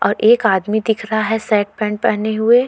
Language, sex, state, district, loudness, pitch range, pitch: Hindi, female, Uttar Pradesh, Jalaun, -16 LUFS, 210-225 Hz, 220 Hz